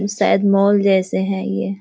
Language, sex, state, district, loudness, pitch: Hindi, female, Bihar, East Champaran, -17 LUFS, 190 Hz